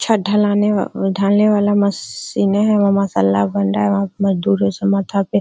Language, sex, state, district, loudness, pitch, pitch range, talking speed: Hindi, female, Bihar, Araria, -16 LUFS, 200 Hz, 180-205 Hz, 200 wpm